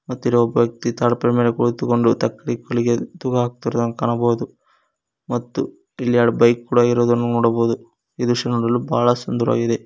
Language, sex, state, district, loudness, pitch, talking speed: Kannada, male, Karnataka, Koppal, -19 LUFS, 120 Hz, 140 wpm